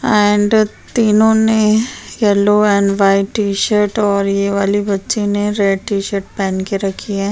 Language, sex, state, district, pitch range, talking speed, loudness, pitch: Hindi, female, Uttar Pradesh, Hamirpur, 200-215 Hz, 150 wpm, -15 LUFS, 205 Hz